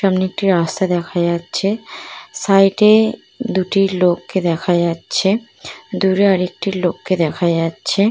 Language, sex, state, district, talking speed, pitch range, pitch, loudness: Bengali, female, West Bengal, Purulia, 150 wpm, 175-195 Hz, 185 Hz, -17 LUFS